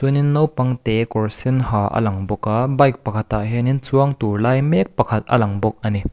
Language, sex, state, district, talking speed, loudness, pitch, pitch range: Mizo, male, Mizoram, Aizawl, 215 wpm, -19 LUFS, 115 Hz, 110-130 Hz